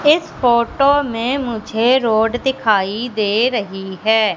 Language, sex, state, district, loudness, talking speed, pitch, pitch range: Hindi, female, Madhya Pradesh, Katni, -17 LUFS, 125 wpm, 230 Hz, 220-260 Hz